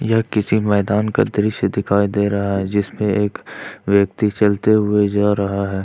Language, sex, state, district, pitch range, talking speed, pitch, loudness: Hindi, male, Jharkhand, Ranchi, 100-105 Hz, 175 wpm, 100 Hz, -18 LUFS